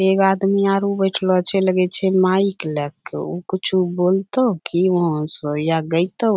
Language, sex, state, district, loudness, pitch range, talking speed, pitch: Angika, female, Bihar, Bhagalpur, -19 LUFS, 170-195 Hz, 180 wpm, 185 Hz